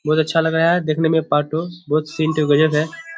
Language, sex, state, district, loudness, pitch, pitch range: Hindi, male, Bihar, Kishanganj, -18 LUFS, 155 Hz, 155-165 Hz